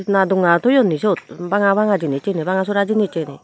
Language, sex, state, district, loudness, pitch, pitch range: Chakma, female, Tripura, Unakoti, -17 LUFS, 195 Hz, 170-205 Hz